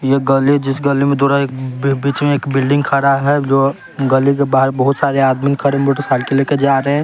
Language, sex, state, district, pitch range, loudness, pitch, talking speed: Hindi, male, Bihar, West Champaran, 135-140 Hz, -14 LUFS, 140 Hz, 240 wpm